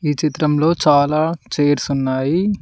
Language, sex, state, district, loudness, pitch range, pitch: Telugu, male, Telangana, Mahabubabad, -17 LUFS, 145-160 Hz, 150 Hz